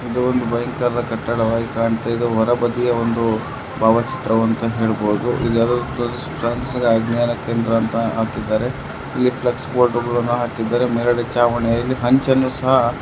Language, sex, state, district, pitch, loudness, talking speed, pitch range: Kannada, male, Karnataka, Chamarajanagar, 120 Hz, -19 LUFS, 120 wpm, 115-120 Hz